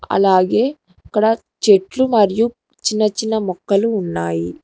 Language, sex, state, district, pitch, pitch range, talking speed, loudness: Telugu, female, Telangana, Hyderabad, 215 Hz, 190-225 Hz, 105 wpm, -17 LUFS